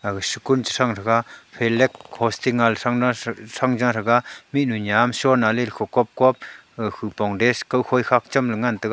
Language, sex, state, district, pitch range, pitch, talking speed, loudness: Wancho, male, Arunachal Pradesh, Longding, 115-125 Hz, 120 Hz, 180 wpm, -21 LUFS